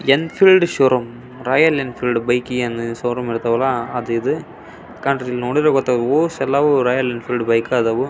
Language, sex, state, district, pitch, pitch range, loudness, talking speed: Kannada, male, Karnataka, Belgaum, 125 Hz, 120-135 Hz, -18 LUFS, 105 wpm